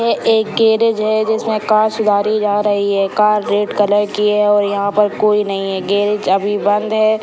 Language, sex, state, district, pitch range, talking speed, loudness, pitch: Hindi, female, Bihar, Saran, 205-215 Hz, 210 wpm, -15 LUFS, 210 Hz